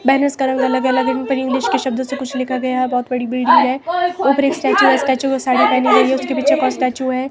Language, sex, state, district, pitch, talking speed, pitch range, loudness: Hindi, female, Himachal Pradesh, Shimla, 260 Hz, 280 wpm, 255-270 Hz, -16 LUFS